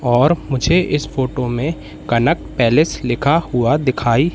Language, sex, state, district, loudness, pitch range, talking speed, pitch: Hindi, male, Madhya Pradesh, Katni, -17 LUFS, 120-155 Hz, 140 wpm, 135 Hz